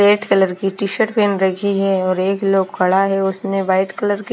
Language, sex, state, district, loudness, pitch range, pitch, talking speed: Hindi, female, Himachal Pradesh, Shimla, -17 LUFS, 190-200 Hz, 195 Hz, 235 wpm